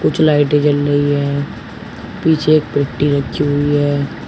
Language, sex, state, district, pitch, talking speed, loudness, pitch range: Hindi, male, Uttar Pradesh, Shamli, 145 Hz, 155 wpm, -15 LUFS, 145-150 Hz